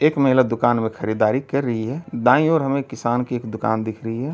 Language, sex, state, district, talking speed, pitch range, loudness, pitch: Hindi, male, Uttar Pradesh, Deoria, 250 wpm, 110-135 Hz, -20 LUFS, 125 Hz